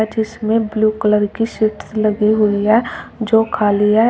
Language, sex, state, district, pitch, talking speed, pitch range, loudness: Hindi, female, Uttar Pradesh, Shamli, 215 Hz, 160 wpm, 210-220 Hz, -16 LUFS